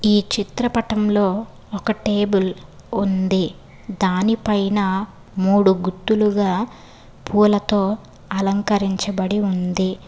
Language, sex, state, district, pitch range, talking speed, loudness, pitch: Telugu, female, Telangana, Hyderabad, 190-210 Hz, 65 wpm, -20 LUFS, 205 Hz